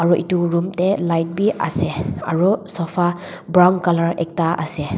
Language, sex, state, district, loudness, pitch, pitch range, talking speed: Nagamese, female, Nagaland, Dimapur, -19 LUFS, 175 Hz, 165-180 Hz, 145 wpm